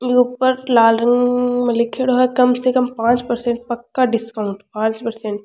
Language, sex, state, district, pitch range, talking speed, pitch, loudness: Rajasthani, female, Rajasthan, Churu, 230-250 Hz, 175 wpm, 240 Hz, -17 LUFS